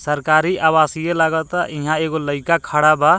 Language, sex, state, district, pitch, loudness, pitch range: Bhojpuri, male, Bihar, Muzaffarpur, 160 Hz, -17 LUFS, 150-160 Hz